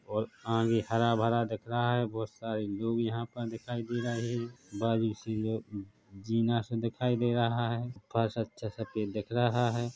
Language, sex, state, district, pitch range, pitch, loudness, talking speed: Hindi, male, Chhattisgarh, Bilaspur, 110-120 Hz, 115 Hz, -32 LUFS, 125 wpm